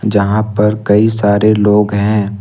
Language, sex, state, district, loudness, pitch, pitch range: Hindi, male, Jharkhand, Ranchi, -12 LUFS, 105 Hz, 100-110 Hz